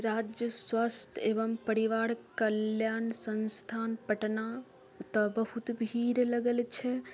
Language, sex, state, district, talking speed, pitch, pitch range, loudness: Maithili, female, Bihar, Samastipur, 100 wpm, 225 Hz, 220-235 Hz, -32 LUFS